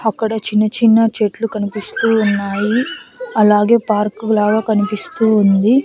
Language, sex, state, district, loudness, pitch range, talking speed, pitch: Telugu, female, Andhra Pradesh, Annamaya, -15 LUFS, 210-225 Hz, 115 wpm, 215 Hz